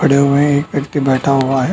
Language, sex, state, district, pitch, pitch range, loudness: Hindi, male, Bihar, Darbhanga, 140 Hz, 135-145 Hz, -14 LUFS